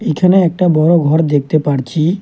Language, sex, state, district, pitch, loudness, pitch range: Bengali, male, West Bengal, Alipurduar, 160 Hz, -13 LUFS, 150-180 Hz